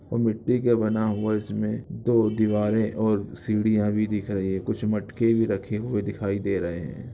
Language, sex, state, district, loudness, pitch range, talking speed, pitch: Hindi, male, Jharkhand, Jamtara, -25 LUFS, 105-110 Hz, 195 wpm, 105 Hz